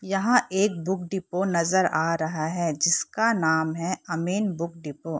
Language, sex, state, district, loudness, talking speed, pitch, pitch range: Hindi, female, Uttar Pradesh, Gorakhpur, -25 LUFS, 175 wpm, 175 Hz, 160-190 Hz